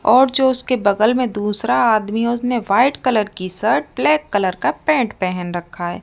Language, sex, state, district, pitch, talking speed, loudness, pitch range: Hindi, female, Rajasthan, Jaipur, 220 Hz, 210 wpm, -18 LUFS, 190-250 Hz